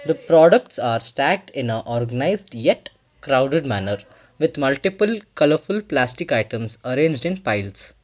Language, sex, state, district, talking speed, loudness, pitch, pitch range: English, male, Karnataka, Bangalore, 135 wpm, -20 LUFS, 140 Hz, 120-170 Hz